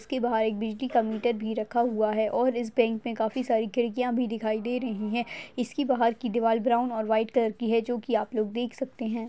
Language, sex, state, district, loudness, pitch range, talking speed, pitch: Hindi, female, Maharashtra, Chandrapur, -27 LUFS, 220-245 Hz, 245 wpm, 235 Hz